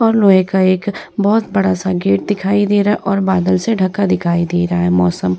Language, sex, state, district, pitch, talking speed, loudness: Hindi, female, Bihar, Vaishali, 185 Hz, 235 wpm, -15 LUFS